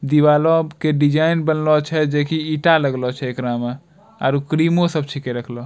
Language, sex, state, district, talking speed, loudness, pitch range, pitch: Angika, male, Bihar, Bhagalpur, 180 wpm, -18 LUFS, 135-160 Hz, 150 Hz